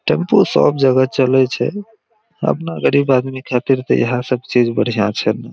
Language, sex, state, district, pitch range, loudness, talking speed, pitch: Maithili, male, Bihar, Araria, 125-160 Hz, -16 LUFS, 165 wpm, 130 Hz